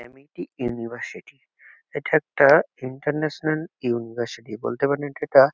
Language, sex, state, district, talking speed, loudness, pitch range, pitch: Bengali, male, West Bengal, Kolkata, 110 wpm, -23 LUFS, 120-150 Hz, 135 Hz